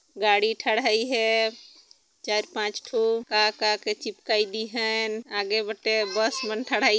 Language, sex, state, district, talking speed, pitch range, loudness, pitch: Sadri, female, Chhattisgarh, Jashpur, 145 wpm, 215-225 Hz, -25 LUFS, 220 Hz